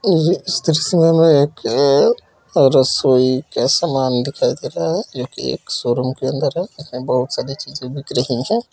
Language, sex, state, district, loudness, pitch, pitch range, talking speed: Kumaoni, male, Uttarakhand, Uttarkashi, -17 LUFS, 140 Hz, 130-165 Hz, 185 wpm